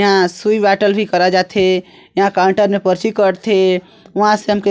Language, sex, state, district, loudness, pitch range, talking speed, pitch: Chhattisgarhi, male, Chhattisgarh, Sarguja, -14 LUFS, 185-210 Hz, 180 wpm, 195 Hz